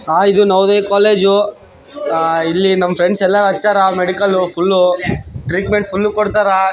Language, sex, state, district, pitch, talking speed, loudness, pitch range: Kannada, male, Karnataka, Raichur, 190 Hz, 125 wpm, -13 LUFS, 180-205 Hz